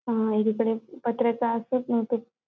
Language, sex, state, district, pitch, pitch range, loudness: Marathi, female, Maharashtra, Dhule, 235 Hz, 225-240 Hz, -26 LUFS